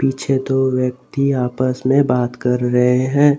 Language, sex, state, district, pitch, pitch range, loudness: Hindi, male, Jharkhand, Garhwa, 130 Hz, 125-135 Hz, -17 LUFS